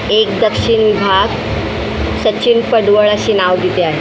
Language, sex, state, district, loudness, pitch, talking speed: Marathi, female, Maharashtra, Mumbai Suburban, -13 LUFS, 195 Hz, 135 wpm